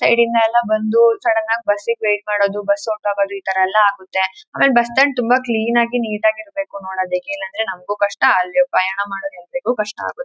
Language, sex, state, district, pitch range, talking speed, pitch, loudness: Kannada, female, Karnataka, Chamarajanagar, 200-235 Hz, 185 wpm, 215 Hz, -17 LUFS